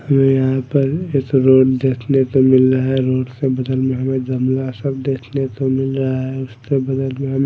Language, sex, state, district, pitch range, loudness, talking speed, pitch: Hindi, male, Odisha, Malkangiri, 130-135 Hz, -17 LUFS, 200 wpm, 130 Hz